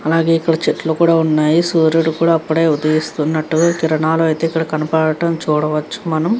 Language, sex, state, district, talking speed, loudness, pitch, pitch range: Telugu, female, Andhra Pradesh, Krishna, 140 wpm, -15 LUFS, 160 Hz, 155-165 Hz